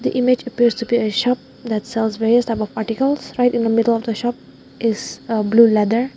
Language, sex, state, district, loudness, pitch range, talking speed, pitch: English, female, Nagaland, Dimapur, -18 LUFS, 225-245 Hz, 215 wpm, 230 Hz